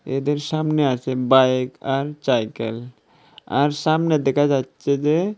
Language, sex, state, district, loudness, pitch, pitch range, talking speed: Bengali, male, Tripura, West Tripura, -20 LUFS, 140 Hz, 130-150 Hz, 135 wpm